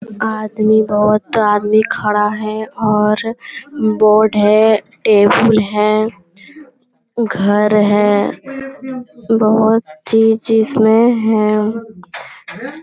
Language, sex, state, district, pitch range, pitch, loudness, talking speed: Hindi, female, Bihar, Jamui, 210-225 Hz, 215 Hz, -13 LUFS, 80 wpm